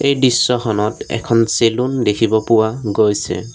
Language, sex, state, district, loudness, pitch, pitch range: Assamese, male, Assam, Sonitpur, -16 LUFS, 115 Hz, 110-125 Hz